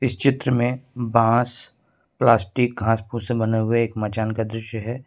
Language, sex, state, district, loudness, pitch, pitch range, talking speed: Hindi, male, Jharkhand, Ranchi, -22 LUFS, 115 Hz, 110-125 Hz, 175 wpm